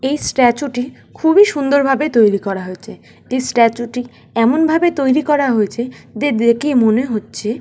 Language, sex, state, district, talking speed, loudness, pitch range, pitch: Bengali, female, West Bengal, North 24 Parganas, 165 wpm, -15 LUFS, 230-285 Hz, 250 Hz